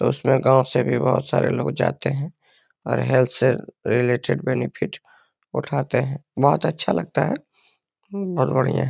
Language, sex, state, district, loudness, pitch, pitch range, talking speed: Hindi, male, Bihar, Lakhisarai, -21 LUFS, 130 Hz, 125-140 Hz, 150 wpm